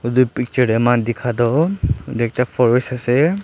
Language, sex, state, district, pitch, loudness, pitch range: Nagamese, male, Nagaland, Dimapur, 120 Hz, -17 LUFS, 120-125 Hz